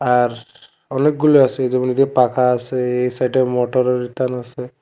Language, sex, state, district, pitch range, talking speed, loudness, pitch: Bengali, male, Tripura, West Tripura, 125-130 Hz, 160 wpm, -17 LUFS, 125 Hz